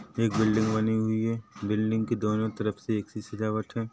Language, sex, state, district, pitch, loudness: Hindi, male, Chhattisgarh, Rajnandgaon, 110 Hz, -28 LUFS